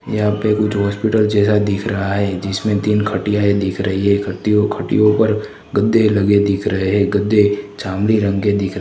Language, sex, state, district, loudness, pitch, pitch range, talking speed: Hindi, male, Gujarat, Gandhinagar, -16 LUFS, 105 Hz, 100-105 Hz, 190 wpm